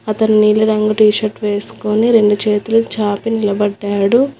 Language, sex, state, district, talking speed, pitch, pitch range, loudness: Telugu, female, Telangana, Hyderabad, 120 wpm, 215 Hz, 205-220 Hz, -14 LUFS